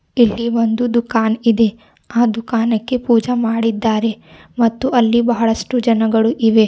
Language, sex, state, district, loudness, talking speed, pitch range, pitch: Kannada, female, Karnataka, Bidar, -16 LUFS, 125 wpm, 225-235 Hz, 230 Hz